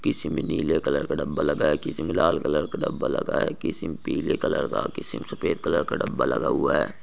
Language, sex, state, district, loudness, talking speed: Hindi, male, Maharashtra, Chandrapur, -25 LUFS, 230 wpm